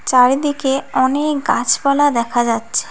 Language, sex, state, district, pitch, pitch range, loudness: Bengali, female, West Bengal, Cooch Behar, 270 Hz, 245-290 Hz, -16 LUFS